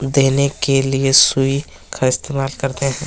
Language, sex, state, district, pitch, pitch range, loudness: Hindi, male, Chhattisgarh, Kabirdham, 135 Hz, 135-140 Hz, -16 LUFS